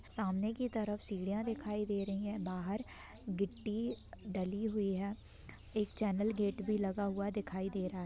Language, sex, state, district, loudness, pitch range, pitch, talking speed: Hindi, female, Bihar, Gopalganj, -38 LUFS, 195-215 Hz, 205 Hz, 165 wpm